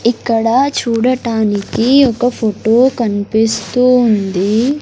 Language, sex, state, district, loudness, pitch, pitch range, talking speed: Telugu, male, Andhra Pradesh, Sri Satya Sai, -13 LUFS, 230 Hz, 220-250 Hz, 75 wpm